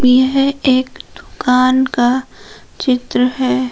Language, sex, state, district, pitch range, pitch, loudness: Hindi, female, Jharkhand, Palamu, 250-260 Hz, 255 Hz, -15 LUFS